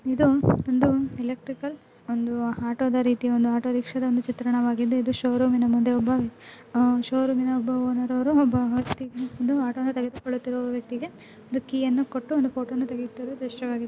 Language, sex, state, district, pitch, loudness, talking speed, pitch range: Kannada, female, Karnataka, Dakshina Kannada, 250 Hz, -25 LUFS, 130 wpm, 245-260 Hz